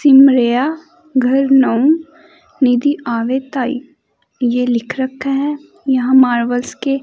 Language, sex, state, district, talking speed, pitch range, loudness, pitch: Hindi, female, Chandigarh, Chandigarh, 110 wpm, 250-290 Hz, -15 LUFS, 265 Hz